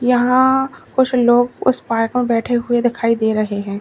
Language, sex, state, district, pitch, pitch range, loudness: Hindi, female, Uttar Pradesh, Lalitpur, 240 Hz, 230-250 Hz, -16 LUFS